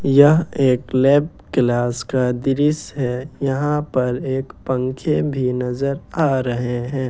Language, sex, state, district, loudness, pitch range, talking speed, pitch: Hindi, male, Jharkhand, Ranchi, -19 LUFS, 125-140 Hz, 145 wpm, 130 Hz